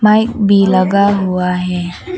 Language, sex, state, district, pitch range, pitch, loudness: Hindi, female, Arunachal Pradesh, Papum Pare, 180-205 Hz, 195 Hz, -13 LUFS